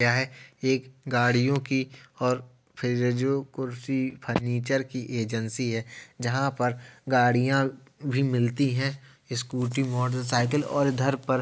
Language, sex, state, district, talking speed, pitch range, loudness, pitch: Hindi, male, Uttar Pradesh, Jalaun, 120 wpm, 125-135 Hz, -27 LUFS, 130 Hz